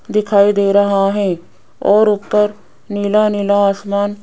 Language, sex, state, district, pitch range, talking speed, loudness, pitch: Hindi, female, Rajasthan, Jaipur, 200-210 Hz, 125 wpm, -14 LUFS, 205 Hz